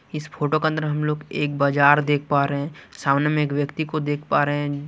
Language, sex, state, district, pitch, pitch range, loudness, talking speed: Hindi, male, Chhattisgarh, Raipur, 145 Hz, 145-150 Hz, -22 LUFS, 260 wpm